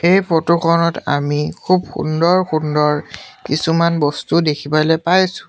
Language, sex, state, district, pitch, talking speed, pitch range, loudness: Assamese, male, Assam, Sonitpur, 165 Hz, 120 wpm, 150-170 Hz, -16 LUFS